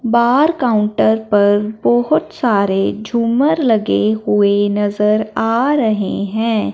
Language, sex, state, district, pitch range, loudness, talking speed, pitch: Hindi, male, Punjab, Fazilka, 205-235 Hz, -15 LUFS, 105 wpm, 215 Hz